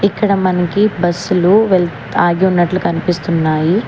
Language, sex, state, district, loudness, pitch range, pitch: Telugu, female, Telangana, Hyderabad, -14 LUFS, 170-195 Hz, 180 Hz